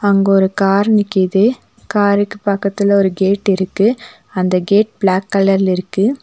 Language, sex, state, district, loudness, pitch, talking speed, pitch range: Tamil, female, Tamil Nadu, Nilgiris, -14 LUFS, 200 Hz, 135 wpm, 190-205 Hz